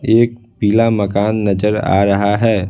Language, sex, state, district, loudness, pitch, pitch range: Hindi, male, Bihar, Patna, -15 LUFS, 105 Hz, 100-115 Hz